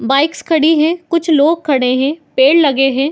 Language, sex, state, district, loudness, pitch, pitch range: Hindi, female, Bihar, Madhepura, -13 LUFS, 300 Hz, 270-320 Hz